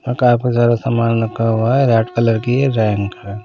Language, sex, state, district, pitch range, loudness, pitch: Hindi, male, Punjab, Pathankot, 115-120 Hz, -16 LUFS, 115 Hz